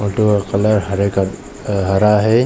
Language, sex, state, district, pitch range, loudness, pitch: Hindi, male, Chhattisgarh, Bilaspur, 100-110 Hz, -16 LUFS, 105 Hz